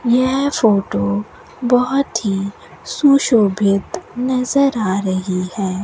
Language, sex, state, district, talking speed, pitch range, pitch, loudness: Hindi, female, Rajasthan, Bikaner, 90 wpm, 195-255 Hz, 225 Hz, -17 LUFS